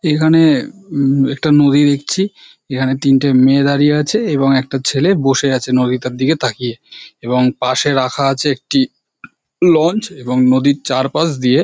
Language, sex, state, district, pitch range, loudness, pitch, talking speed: Bengali, male, West Bengal, North 24 Parganas, 130-155 Hz, -14 LUFS, 140 Hz, 150 wpm